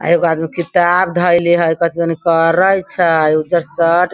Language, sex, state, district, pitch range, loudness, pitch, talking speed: Hindi, female, Bihar, Sitamarhi, 165-175 Hz, -14 LUFS, 170 Hz, 160 wpm